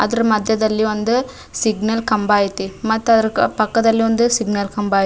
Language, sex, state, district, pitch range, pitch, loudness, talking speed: Kannada, female, Karnataka, Dharwad, 210-225 Hz, 220 Hz, -17 LUFS, 140 wpm